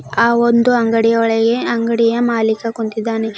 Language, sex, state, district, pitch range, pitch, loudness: Kannada, female, Karnataka, Bidar, 225-235 Hz, 230 Hz, -15 LUFS